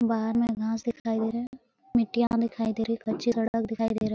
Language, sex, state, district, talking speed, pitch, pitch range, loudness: Hindi, female, Bihar, Araria, 260 wpm, 230 Hz, 225-235 Hz, -28 LUFS